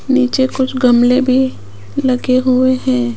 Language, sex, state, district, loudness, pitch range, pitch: Hindi, female, Rajasthan, Jaipur, -14 LUFS, 250-260 Hz, 255 Hz